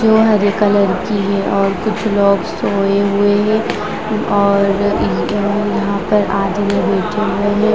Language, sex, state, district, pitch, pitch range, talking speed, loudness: Hindi, female, Bihar, Vaishali, 205 Hz, 200-210 Hz, 145 wpm, -15 LUFS